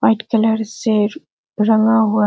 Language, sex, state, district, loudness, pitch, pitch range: Hindi, female, Bihar, Araria, -16 LUFS, 220 Hz, 210-220 Hz